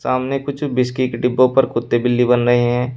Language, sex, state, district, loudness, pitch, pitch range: Hindi, male, Uttar Pradesh, Shamli, -17 LUFS, 125 Hz, 120-130 Hz